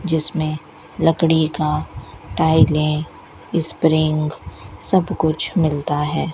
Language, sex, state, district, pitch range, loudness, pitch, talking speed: Hindi, female, Rajasthan, Bikaner, 145-160 Hz, -19 LUFS, 155 Hz, 85 wpm